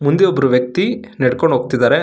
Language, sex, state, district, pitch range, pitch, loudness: Kannada, male, Karnataka, Bangalore, 125-195 Hz, 145 Hz, -15 LUFS